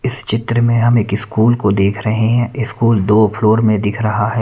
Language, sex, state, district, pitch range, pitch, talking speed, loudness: Hindi, male, Punjab, Kapurthala, 105-115 Hz, 110 Hz, 230 wpm, -14 LUFS